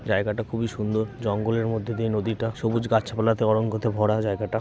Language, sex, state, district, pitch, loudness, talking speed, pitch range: Bengali, male, West Bengal, North 24 Parganas, 110 Hz, -25 LUFS, 155 wpm, 105-115 Hz